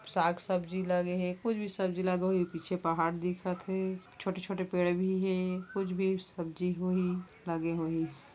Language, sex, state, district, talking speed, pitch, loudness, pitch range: Chhattisgarhi, female, Chhattisgarh, Kabirdham, 165 wpm, 185 Hz, -33 LUFS, 175-190 Hz